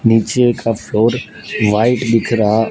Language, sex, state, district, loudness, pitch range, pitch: Hindi, male, Gujarat, Gandhinagar, -15 LUFS, 110-120 Hz, 115 Hz